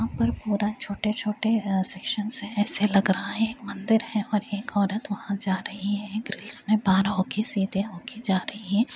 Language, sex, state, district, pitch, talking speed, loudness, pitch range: Hindi, female, Uttar Pradesh, Hamirpur, 210 Hz, 200 wpm, -25 LUFS, 195-215 Hz